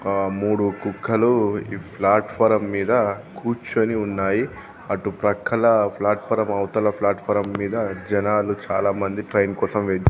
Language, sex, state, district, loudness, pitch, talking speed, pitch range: Telugu, male, Telangana, Karimnagar, -22 LUFS, 105 Hz, 115 wpm, 100-110 Hz